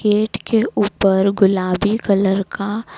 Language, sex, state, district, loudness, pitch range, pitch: Hindi, female, Madhya Pradesh, Dhar, -17 LUFS, 195-210 Hz, 200 Hz